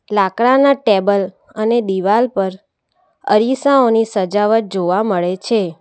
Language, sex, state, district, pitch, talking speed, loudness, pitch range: Gujarati, female, Gujarat, Valsad, 210 Hz, 105 wpm, -15 LUFS, 190-230 Hz